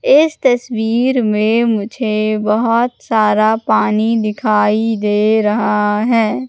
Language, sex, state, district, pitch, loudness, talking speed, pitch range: Hindi, female, Madhya Pradesh, Katni, 220 Hz, -14 LUFS, 100 wpm, 215-235 Hz